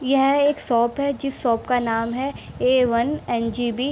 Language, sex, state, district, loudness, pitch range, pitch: Hindi, female, Bihar, Begusarai, -21 LUFS, 235-275 Hz, 250 Hz